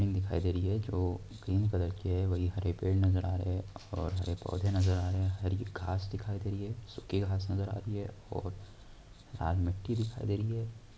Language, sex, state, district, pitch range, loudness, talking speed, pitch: Hindi, male, Bihar, Saharsa, 90-105 Hz, -34 LUFS, 225 wpm, 95 Hz